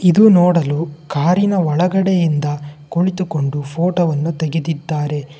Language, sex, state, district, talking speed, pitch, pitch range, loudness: Kannada, male, Karnataka, Bangalore, 80 wpm, 165 Hz, 150-180 Hz, -16 LUFS